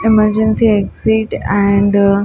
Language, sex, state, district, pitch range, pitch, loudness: Hindi, female, Bihar, Gaya, 200-220 Hz, 215 Hz, -13 LUFS